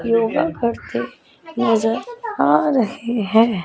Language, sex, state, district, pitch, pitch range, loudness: Hindi, female, Chandigarh, Chandigarh, 235 Hz, 225-300 Hz, -19 LUFS